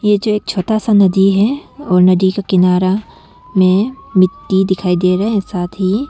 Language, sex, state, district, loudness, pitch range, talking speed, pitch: Hindi, female, Arunachal Pradesh, Longding, -14 LUFS, 185-210 Hz, 175 wpm, 195 Hz